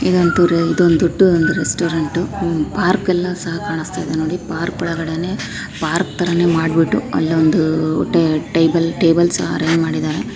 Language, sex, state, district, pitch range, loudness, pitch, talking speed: Kannada, female, Karnataka, Raichur, 160-175 Hz, -17 LUFS, 165 Hz, 140 wpm